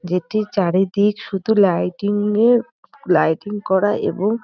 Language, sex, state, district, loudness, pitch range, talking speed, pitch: Bengali, female, West Bengal, North 24 Parganas, -18 LUFS, 190-210 Hz, 110 wpm, 205 Hz